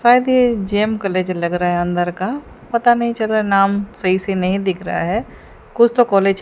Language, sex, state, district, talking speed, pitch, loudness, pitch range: Hindi, female, Odisha, Sambalpur, 225 wpm, 195 Hz, -17 LUFS, 185-235 Hz